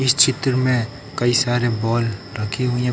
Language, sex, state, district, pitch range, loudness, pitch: Hindi, male, Uttar Pradesh, Lucknow, 115-130 Hz, -19 LUFS, 120 Hz